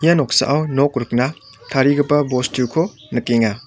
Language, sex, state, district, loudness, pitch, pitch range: Garo, male, Meghalaya, West Garo Hills, -18 LUFS, 135 Hz, 120-145 Hz